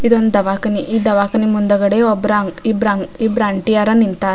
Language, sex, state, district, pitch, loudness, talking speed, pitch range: Kannada, female, Karnataka, Dharwad, 210 Hz, -15 LUFS, 125 wpm, 200-225 Hz